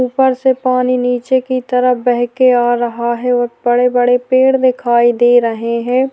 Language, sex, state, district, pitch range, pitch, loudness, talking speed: Hindi, female, Chhattisgarh, Sukma, 240-255 Hz, 245 Hz, -13 LUFS, 185 wpm